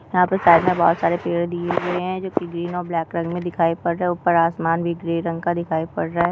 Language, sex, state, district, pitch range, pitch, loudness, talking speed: Hindi, female, Maharashtra, Aurangabad, 170-175 Hz, 170 Hz, -21 LUFS, 285 wpm